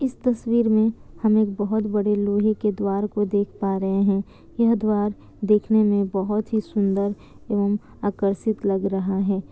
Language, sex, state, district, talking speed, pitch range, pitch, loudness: Hindi, female, Bihar, Kishanganj, 170 wpm, 200-215 Hz, 205 Hz, -22 LUFS